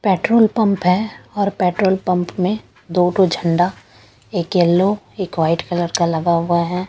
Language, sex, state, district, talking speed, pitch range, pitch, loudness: Hindi, female, Chhattisgarh, Raipur, 165 wpm, 170-195 Hz, 180 Hz, -18 LUFS